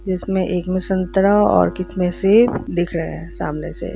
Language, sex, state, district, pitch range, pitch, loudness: Hindi, female, Uttar Pradesh, Varanasi, 175-190 Hz, 185 Hz, -18 LUFS